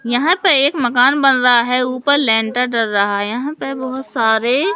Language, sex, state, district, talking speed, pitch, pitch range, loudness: Hindi, male, Madhya Pradesh, Katni, 200 wpm, 250 Hz, 230-270 Hz, -15 LUFS